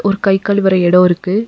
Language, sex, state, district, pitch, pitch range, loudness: Tamil, female, Tamil Nadu, Nilgiris, 195 Hz, 180-200 Hz, -12 LUFS